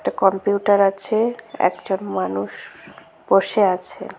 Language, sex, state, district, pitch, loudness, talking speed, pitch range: Bengali, female, West Bengal, Cooch Behar, 200 Hz, -20 LUFS, 85 wpm, 190-215 Hz